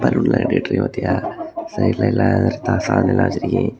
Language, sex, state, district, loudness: Tamil, male, Tamil Nadu, Kanyakumari, -18 LUFS